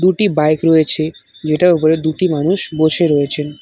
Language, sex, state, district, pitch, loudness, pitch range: Bengali, male, West Bengal, Cooch Behar, 155 Hz, -15 LUFS, 155-175 Hz